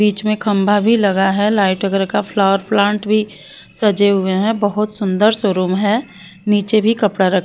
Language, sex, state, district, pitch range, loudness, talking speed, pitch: Hindi, female, Bihar, West Champaran, 195-215 Hz, -15 LUFS, 195 wpm, 205 Hz